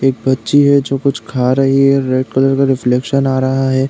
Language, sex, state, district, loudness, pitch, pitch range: Hindi, male, Uttar Pradesh, Deoria, -13 LUFS, 135 Hz, 130-135 Hz